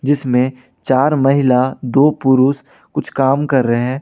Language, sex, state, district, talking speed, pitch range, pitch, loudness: Hindi, male, Jharkhand, Ranchi, 150 wpm, 130-140 Hz, 130 Hz, -15 LUFS